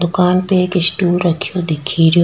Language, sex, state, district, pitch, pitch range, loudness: Rajasthani, female, Rajasthan, Churu, 180 Hz, 170-180 Hz, -15 LUFS